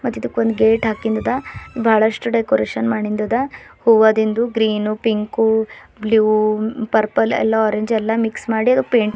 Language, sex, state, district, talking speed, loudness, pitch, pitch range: Kannada, female, Karnataka, Bidar, 140 wpm, -17 LUFS, 220 Hz, 215-225 Hz